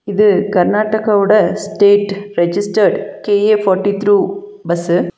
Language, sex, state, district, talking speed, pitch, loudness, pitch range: Tamil, female, Tamil Nadu, Nilgiris, 125 wpm, 205 Hz, -14 LUFS, 200-210 Hz